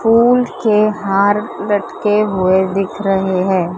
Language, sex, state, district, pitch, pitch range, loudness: Hindi, female, Maharashtra, Mumbai Suburban, 200 Hz, 190-210 Hz, -15 LUFS